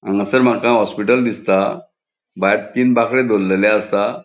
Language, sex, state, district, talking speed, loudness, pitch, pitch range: Konkani, male, Goa, North and South Goa, 125 wpm, -16 LUFS, 115 Hz, 100-125 Hz